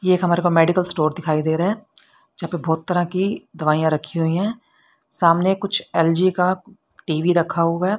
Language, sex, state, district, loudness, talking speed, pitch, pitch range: Hindi, female, Haryana, Rohtak, -20 LUFS, 200 wpm, 175 Hz, 165-185 Hz